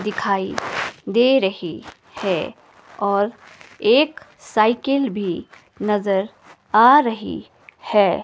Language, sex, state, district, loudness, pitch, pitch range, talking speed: Hindi, female, Himachal Pradesh, Shimla, -19 LUFS, 215 Hz, 200-255 Hz, 85 wpm